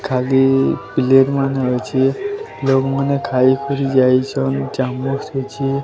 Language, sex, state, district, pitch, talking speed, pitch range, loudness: Odia, male, Odisha, Sambalpur, 135 Hz, 115 wpm, 130-135 Hz, -17 LUFS